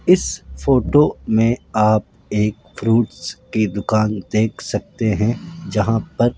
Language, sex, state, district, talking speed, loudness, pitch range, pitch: Hindi, male, Rajasthan, Jaipur, 130 wpm, -19 LUFS, 105-120 Hz, 110 Hz